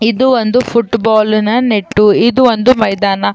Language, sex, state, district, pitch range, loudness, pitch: Kannada, female, Karnataka, Chamarajanagar, 215-245 Hz, -11 LUFS, 225 Hz